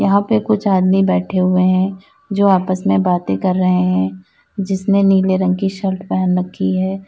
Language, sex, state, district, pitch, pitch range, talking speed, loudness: Hindi, female, Uttar Pradesh, Lalitpur, 190 Hz, 185-195 Hz, 185 wpm, -16 LUFS